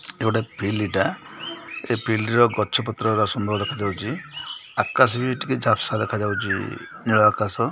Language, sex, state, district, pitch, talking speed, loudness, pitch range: Odia, male, Odisha, Khordha, 110 Hz, 145 wpm, -23 LUFS, 105-120 Hz